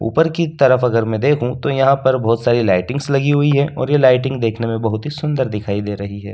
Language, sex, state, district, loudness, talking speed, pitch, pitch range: Hindi, male, Delhi, New Delhi, -16 LUFS, 255 wpm, 130 Hz, 115-140 Hz